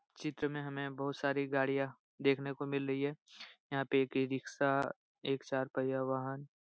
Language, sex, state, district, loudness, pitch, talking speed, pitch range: Hindi, male, Bihar, Supaul, -37 LUFS, 140 Hz, 190 wpm, 135-140 Hz